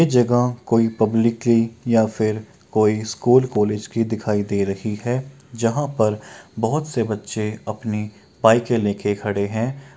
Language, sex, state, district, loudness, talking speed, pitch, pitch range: Maithili, male, Bihar, Kishanganj, -21 LUFS, 145 wpm, 110 Hz, 105-120 Hz